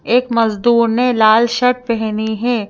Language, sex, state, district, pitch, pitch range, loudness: Hindi, female, Madhya Pradesh, Bhopal, 235 Hz, 220-245 Hz, -14 LUFS